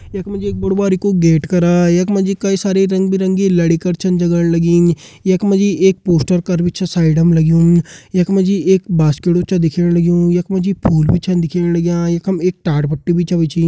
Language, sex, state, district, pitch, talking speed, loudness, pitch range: Hindi, male, Uttarakhand, Uttarkashi, 175 Hz, 255 wpm, -14 LUFS, 170-190 Hz